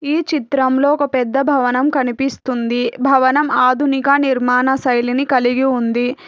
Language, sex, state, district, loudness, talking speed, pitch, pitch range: Telugu, female, Telangana, Hyderabad, -15 LUFS, 115 wpm, 265 Hz, 250-280 Hz